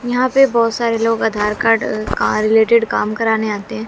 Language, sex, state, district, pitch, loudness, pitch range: Hindi, female, Bihar, West Champaran, 225 Hz, -15 LUFS, 215-235 Hz